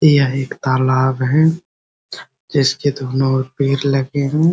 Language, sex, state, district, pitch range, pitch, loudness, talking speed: Hindi, male, Bihar, Muzaffarpur, 130-145 Hz, 135 Hz, -17 LUFS, 145 wpm